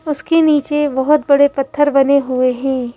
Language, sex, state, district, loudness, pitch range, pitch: Hindi, female, Madhya Pradesh, Bhopal, -14 LUFS, 270-295 Hz, 280 Hz